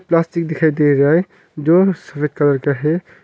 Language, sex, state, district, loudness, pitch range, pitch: Hindi, male, Arunachal Pradesh, Longding, -16 LUFS, 150-170 Hz, 160 Hz